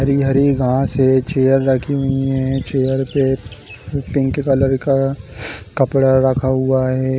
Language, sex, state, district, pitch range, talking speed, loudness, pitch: Hindi, male, Chhattisgarh, Balrampur, 130-135 Hz, 150 wpm, -17 LUFS, 135 Hz